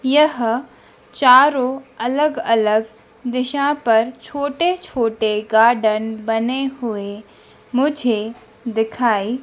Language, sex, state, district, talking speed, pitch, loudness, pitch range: Hindi, female, Madhya Pradesh, Dhar, 75 wpm, 235 Hz, -18 LUFS, 220-265 Hz